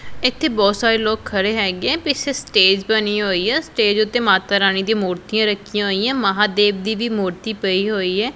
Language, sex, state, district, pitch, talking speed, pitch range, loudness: Punjabi, female, Punjab, Pathankot, 210 Hz, 185 wpm, 195-220 Hz, -18 LUFS